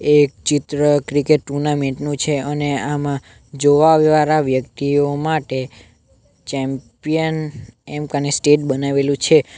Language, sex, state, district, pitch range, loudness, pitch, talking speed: Gujarati, male, Gujarat, Navsari, 130-150 Hz, -18 LUFS, 145 Hz, 115 wpm